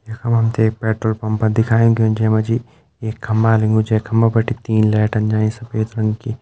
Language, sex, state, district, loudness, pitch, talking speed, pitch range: Garhwali, male, Uttarakhand, Uttarkashi, -17 LUFS, 110 Hz, 225 wpm, 110-115 Hz